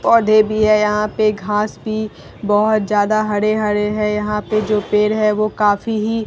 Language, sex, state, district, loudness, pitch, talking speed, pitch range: Hindi, female, Bihar, Katihar, -16 LUFS, 215 Hz, 190 wpm, 210-215 Hz